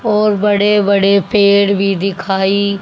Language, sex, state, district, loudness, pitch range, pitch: Hindi, female, Haryana, Charkhi Dadri, -13 LUFS, 195-205 Hz, 200 Hz